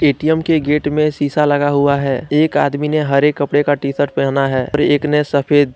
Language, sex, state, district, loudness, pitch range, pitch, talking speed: Hindi, male, Jharkhand, Deoghar, -15 LUFS, 140-150 Hz, 145 Hz, 220 wpm